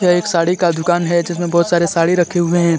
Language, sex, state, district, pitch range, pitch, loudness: Hindi, male, Jharkhand, Deoghar, 170-175 Hz, 175 Hz, -15 LUFS